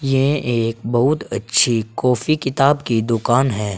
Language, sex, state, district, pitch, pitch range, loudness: Hindi, male, Uttar Pradesh, Saharanpur, 120 Hz, 115-135 Hz, -18 LUFS